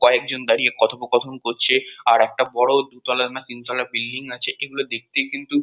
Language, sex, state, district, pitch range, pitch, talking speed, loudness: Bengali, male, West Bengal, Kolkata, 120-135 Hz, 125 Hz, 160 wpm, -19 LUFS